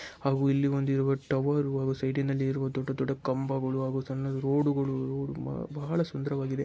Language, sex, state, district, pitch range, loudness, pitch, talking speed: Kannada, male, Karnataka, Chamarajanagar, 135-140 Hz, -30 LUFS, 135 Hz, 135 wpm